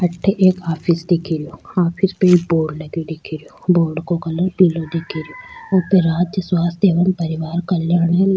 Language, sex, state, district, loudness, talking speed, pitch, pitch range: Rajasthani, female, Rajasthan, Churu, -18 LUFS, 180 wpm, 175 Hz, 165-185 Hz